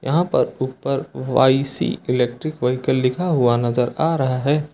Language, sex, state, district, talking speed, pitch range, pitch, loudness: Hindi, male, Uttar Pradesh, Lucknow, 165 wpm, 125-150 Hz, 130 Hz, -20 LUFS